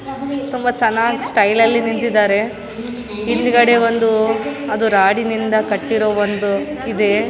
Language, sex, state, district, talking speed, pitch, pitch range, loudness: Kannada, female, Karnataka, Raichur, 100 wpm, 225 Hz, 215-240 Hz, -16 LUFS